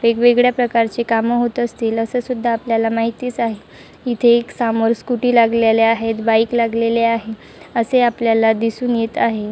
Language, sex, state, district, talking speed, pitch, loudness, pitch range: Marathi, male, Maharashtra, Chandrapur, 150 wpm, 230 Hz, -17 LUFS, 225-240 Hz